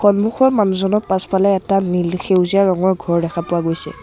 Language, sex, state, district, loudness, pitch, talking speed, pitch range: Assamese, male, Assam, Sonitpur, -16 LUFS, 190 Hz, 165 wpm, 175-200 Hz